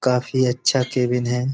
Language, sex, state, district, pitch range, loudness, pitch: Hindi, male, Uttar Pradesh, Budaun, 125-130 Hz, -20 LUFS, 125 Hz